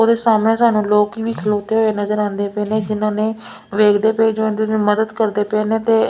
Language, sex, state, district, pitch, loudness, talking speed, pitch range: Punjabi, female, Punjab, Fazilka, 215 Hz, -17 LUFS, 195 wpm, 210-225 Hz